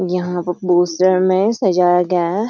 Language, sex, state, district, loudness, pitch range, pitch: Hindi, female, Uttarakhand, Uttarkashi, -16 LUFS, 180-185 Hz, 180 Hz